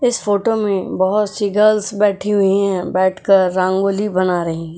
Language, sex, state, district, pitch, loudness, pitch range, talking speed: Hindi, female, Goa, North and South Goa, 195 Hz, -16 LUFS, 185-210 Hz, 175 wpm